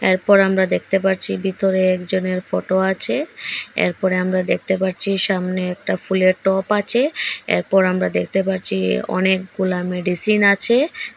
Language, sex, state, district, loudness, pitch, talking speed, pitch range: Bengali, female, Assam, Hailakandi, -18 LUFS, 190 Hz, 130 wpm, 185-195 Hz